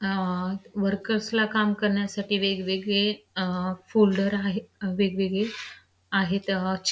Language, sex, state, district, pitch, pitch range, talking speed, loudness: Marathi, female, Maharashtra, Pune, 195 Hz, 190-205 Hz, 95 wpm, -26 LUFS